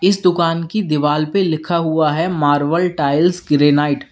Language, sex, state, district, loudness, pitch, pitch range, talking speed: Hindi, male, Uttar Pradesh, Lalitpur, -16 LUFS, 165 Hz, 150-175 Hz, 175 wpm